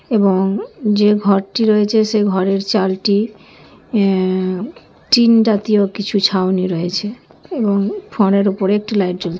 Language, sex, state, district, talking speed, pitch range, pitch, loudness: Bengali, male, West Bengal, Kolkata, 120 wpm, 190-210 Hz, 200 Hz, -16 LUFS